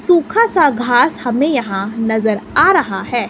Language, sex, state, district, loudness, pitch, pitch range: Hindi, female, Himachal Pradesh, Shimla, -14 LUFS, 245 Hz, 220-305 Hz